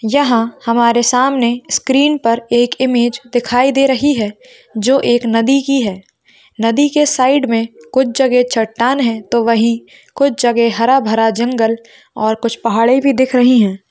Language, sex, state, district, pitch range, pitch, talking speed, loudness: Hindi, female, Maharashtra, Dhule, 230-265 Hz, 240 Hz, 160 wpm, -13 LUFS